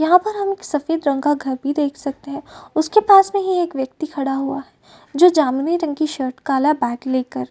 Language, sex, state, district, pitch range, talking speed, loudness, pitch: Hindi, female, Maharashtra, Chandrapur, 270-330 Hz, 230 wpm, -18 LUFS, 295 Hz